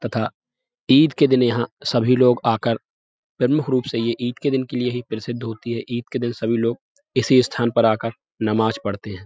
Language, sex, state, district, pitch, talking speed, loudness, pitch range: Hindi, male, Uttar Pradesh, Budaun, 120 Hz, 220 wpm, -20 LUFS, 115-130 Hz